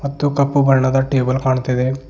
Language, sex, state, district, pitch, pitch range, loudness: Kannada, male, Karnataka, Bidar, 135 Hz, 130-140 Hz, -16 LUFS